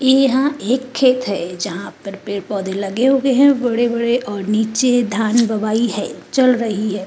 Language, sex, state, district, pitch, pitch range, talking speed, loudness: Hindi, female, Uttar Pradesh, Jalaun, 235 Hz, 205-255 Hz, 155 wpm, -17 LUFS